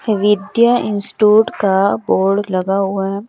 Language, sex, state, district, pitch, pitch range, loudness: Hindi, female, Bihar, West Champaran, 200 Hz, 195-210 Hz, -15 LUFS